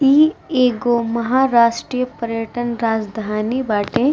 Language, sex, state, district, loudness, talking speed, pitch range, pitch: Bhojpuri, female, Bihar, East Champaran, -18 LUFS, 85 wpm, 225-255 Hz, 235 Hz